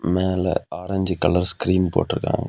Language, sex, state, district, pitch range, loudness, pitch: Tamil, male, Tamil Nadu, Kanyakumari, 90-95 Hz, -21 LUFS, 90 Hz